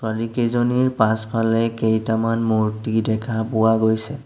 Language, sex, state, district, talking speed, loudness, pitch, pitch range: Assamese, male, Assam, Sonitpur, 100 wpm, -20 LUFS, 110 Hz, 110-115 Hz